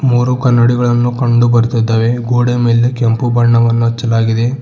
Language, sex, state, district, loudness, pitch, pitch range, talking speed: Kannada, male, Karnataka, Bidar, -12 LUFS, 120 Hz, 115-120 Hz, 130 wpm